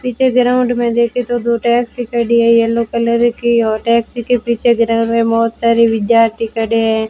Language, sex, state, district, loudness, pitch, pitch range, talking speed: Hindi, female, Rajasthan, Bikaner, -14 LUFS, 235 Hz, 230-240 Hz, 195 wpm